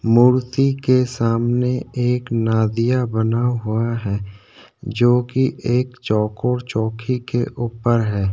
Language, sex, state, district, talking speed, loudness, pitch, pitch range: Hindi, male, Chhattisgarh, Korba, 115 wpm, -19 LUFS, 120 Hz, 110-125 Hz